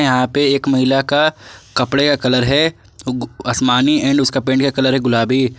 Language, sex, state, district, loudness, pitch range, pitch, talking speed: Hindi, male, Jharkhand, Garhwa, -15 LUFS, 125-140 Hz, 130 Hz, 195 wpm